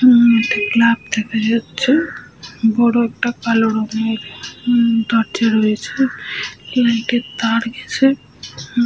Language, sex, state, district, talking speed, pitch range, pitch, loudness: Bengali, female, West Bengal, Malda, 110 wpm, 225-240 Hz, 230 Hz, -17 LUFS